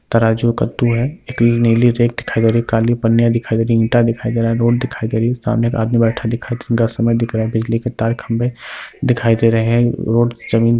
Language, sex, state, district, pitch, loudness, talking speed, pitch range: Hindi, male, Bihar, Lakhisarai, 115 Hz, -16 LUFS, 290 wpm, 115-120 Hz